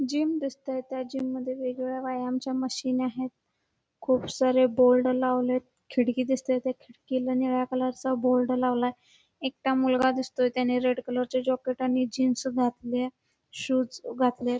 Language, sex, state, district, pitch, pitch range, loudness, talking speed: Marathi, female, Karnataka, Belgaum, 255 Hz, 250-260 Hz, -27 LUFS, 140 wpm